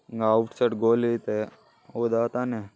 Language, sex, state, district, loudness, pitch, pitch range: Kannada, male, Karnataka, Bellary, -25 LUFS, 115 Hz, 110-120 Hz